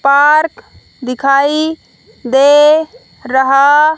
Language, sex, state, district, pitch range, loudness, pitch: Hindi, female, Haryana, Rohtak, 275-310 Hz, -11 LUFS, 290 Hz